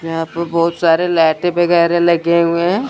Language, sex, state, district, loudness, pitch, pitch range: Hindi, male, Chandigarh, Chandigarh, -14 LUFS, 170 Hz, 165-175 Hz